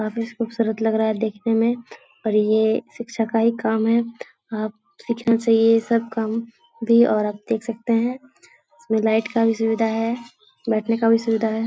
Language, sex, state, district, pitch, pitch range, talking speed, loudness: Hindi, female, Bihar, Jahanabad, 225 Hz, 220-235 Hz, 195 wpm, -21 LUFS